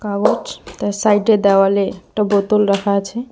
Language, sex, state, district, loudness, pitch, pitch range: Bengali, female, West Bengal, Cooch Behar, -16 LUFS, 205 Hz, 200-210 Hz